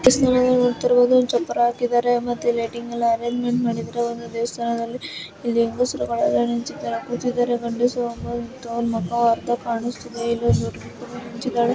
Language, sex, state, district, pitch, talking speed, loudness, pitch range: Kannada, female, Karnataka, Chamarajanagar, 235 Hz, 115 wpm, -22 LUFS, 235-245 Hz